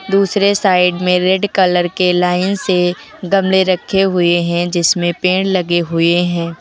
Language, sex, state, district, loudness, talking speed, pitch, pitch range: Hindi, female, Uttar Pradesh, Lucknow, -14 LUFS, 155 wpm, 180 Hz, 175-190 Hz